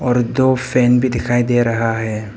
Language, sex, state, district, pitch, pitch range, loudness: Hindi, male, Arunachal Pradesh, Papum Pare, 120 Hz, 115-125 Hz, -16 LUFS